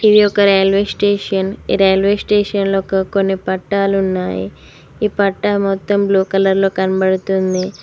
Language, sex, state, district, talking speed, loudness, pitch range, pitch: Telugu, female, Telangana, Mahabubabad, 130 wpm, -15 LUFS, 190-200 Hz, 195 Hz